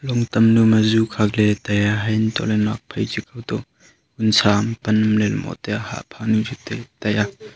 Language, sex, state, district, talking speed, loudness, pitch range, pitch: Wancho, male, Arunachal Pradesh, Longding, 160 wpm, -19 LUFS, 105-115 Hz, 110 Hz